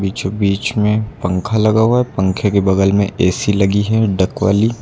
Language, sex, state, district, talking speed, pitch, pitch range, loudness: Hindi, male, Uttar Pradesh, Lucknow, 200 wpm, 105 Hz, 95-110 Hz, -15 LUFS